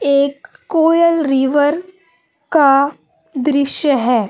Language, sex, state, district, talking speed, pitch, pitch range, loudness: Hindi, female, Jharkhand, Palamu, 85 wpm, 290 Hz, 280-330 Hz, -15 LUFS